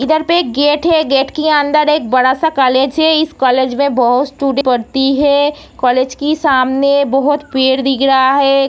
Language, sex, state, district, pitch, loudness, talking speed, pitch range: Hindi, female, Bihar, Darbhanga, 275 Hz, -12 LUFS, 180 wpm, 265-295 Hz